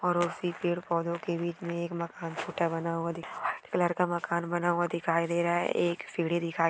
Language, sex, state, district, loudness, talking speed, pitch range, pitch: Hindi, female, Maharashtra, Aurangabad, -31 LUFS, 235 wpm, 170-175 Hz, 170 Hz